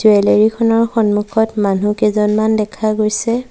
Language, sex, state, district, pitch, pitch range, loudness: Assamese, female, Assam, Sonitpur, 215 Hz, 210-220 Hz, -15 LUFS